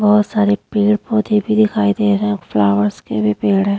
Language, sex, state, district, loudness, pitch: Hindi, female, Uttar Pradesh, Hamirpur, -16 LUFS, 195 Hz